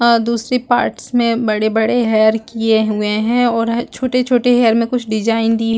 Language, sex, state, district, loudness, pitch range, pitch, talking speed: Hindi, female, Chhattisgarh, Balrampur, -15 LUFS, 220-245 Hz, 230 Hz, 195 wpm